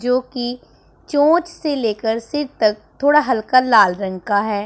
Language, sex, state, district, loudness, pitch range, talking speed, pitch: Hindi, female, Punjab, Pathankot, -18 LUFS, 215-290 Hz, 165 wpm, 245 Hz